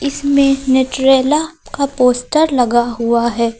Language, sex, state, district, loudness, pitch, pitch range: Hindi, female, Uttar Pradesh, Lucknow, -14 LUFS, 265 Hz, 240-280 Hz